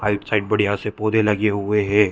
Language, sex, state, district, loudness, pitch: Hindi, male, Chhattisgarh, Bilaspur, -20 LUFS, 105 Hz